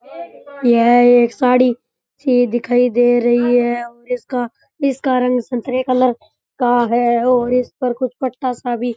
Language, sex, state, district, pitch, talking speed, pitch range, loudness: Rajasthani, male, Rajasthan, Churu, 245 Hz, 155 wpm, 240-255 Hz, -16 LUFS